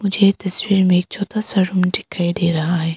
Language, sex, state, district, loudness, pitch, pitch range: Hindi, female, Arunachal Pradesh, Papum Pare, -17 LUFS, 190 Hz, 175-200 Hz